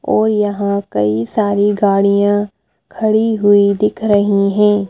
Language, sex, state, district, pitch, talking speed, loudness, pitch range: Hindi, female, Madhya Pradesh, Bhopal, 205 Hz, 120 wpm, -14 LUFS, 200-210 Hz